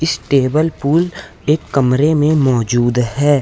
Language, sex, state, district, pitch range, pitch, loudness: Hindi, male, Jharkhand, Ranchi, 130-155 Hz, 145 Hz, -15 LUFS